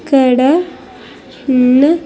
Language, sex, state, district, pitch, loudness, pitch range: Telugu, female, Andhra Pradesh, Sri Satya Sai, 270 Hz, -11 LUFS, 255-320 Hz